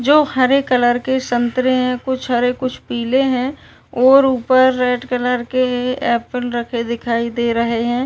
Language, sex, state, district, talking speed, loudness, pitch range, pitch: Hindi, female, Uttar Pradesh, Varanasi, 165 wpm, -17 LUFS, 240-260 Hz, 250 Hz